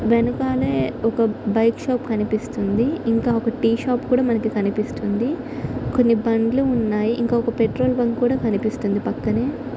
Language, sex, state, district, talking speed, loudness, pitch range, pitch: Telugu, female, Andhra Pradesh, Visakhapatnam, 130 wpm, -21 LUFS, 220-245 Hz, 230 Hz